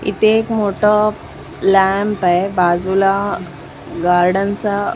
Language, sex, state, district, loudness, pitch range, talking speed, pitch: Marathi, female, Maharashtra, Mumbai Suburban, -15 LUFS, 185-210 Hz, 110 wpm, 195 Hz